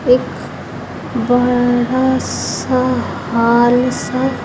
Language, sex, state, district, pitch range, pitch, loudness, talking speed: Hindi, female, Chhattisgarh, Raipur, 240-255 Hz, 245 Hz, -15 LUFS, 65 wpm